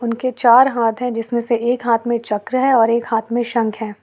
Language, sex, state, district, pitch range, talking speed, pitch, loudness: Hindi, female, Jharkhand, Ranchi, 230-245 Hz, 255 wpm, 235 Hz, -17 LUFS